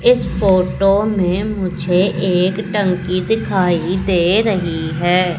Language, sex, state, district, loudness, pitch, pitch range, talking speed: Hindi, female, Madhya Pradesh, Katni, -16 LUFS, 185 Hz, 180-200 Hz, 110 wpm